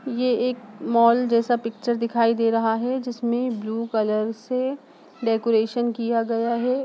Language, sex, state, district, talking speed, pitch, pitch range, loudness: Hindi, female, Bihar, Sitamarhi, 150 wpm, 235 Hz, 230-245 Hz, -23 LUFS